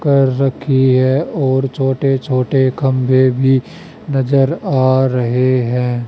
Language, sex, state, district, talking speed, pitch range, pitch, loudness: Hindi, male, Haryana, Jhajjar, 120 wpm, 130-135 Hz, 130 Hz, -14 LUFS